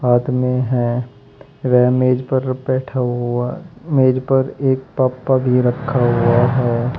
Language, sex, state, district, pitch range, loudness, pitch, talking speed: Hindi, male, Uttar Pradesh, Shamli, 125-130 Hz, -17 LUFS, 125 Hz, 120 wpm